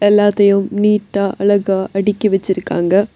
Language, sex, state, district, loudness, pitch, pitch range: Tamil, female, Tamil Nadu, Kanyakumari, -15 LUFS, 200 Hz, 195-205 Hz